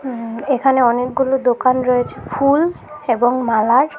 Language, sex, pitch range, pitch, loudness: Bengali, female, 240-270 Hz, 255 Hz, -16 LUFS